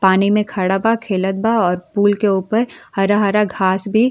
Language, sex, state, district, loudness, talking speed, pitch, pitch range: Bhojpuri, female, Uttar Pradesh, Ghazipur, -17 LUFS, 205 wpm, 200 Hz, 190-215 Hz